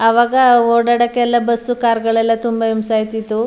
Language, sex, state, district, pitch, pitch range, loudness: Kannada, female, Karnataka, Mysore, 235 Hz, 225-240 Hz, -15 LUFS